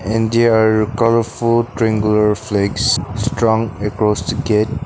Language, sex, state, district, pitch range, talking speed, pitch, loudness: English, male, Nagaland, Dimapur, 105-115 Hz, 125 wpm, 110 Hz, -16 LUFS